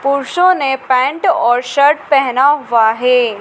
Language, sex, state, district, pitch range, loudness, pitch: Hindi, female, Madhya Pradesh, Dhar, 250-285 Hz, -13 LUFS, 270 Hz